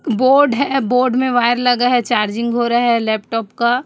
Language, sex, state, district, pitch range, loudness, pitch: Hindi, female, Chhattisgarh, Raipur, 235-255 Hz, -15 LUFS, 245 Hz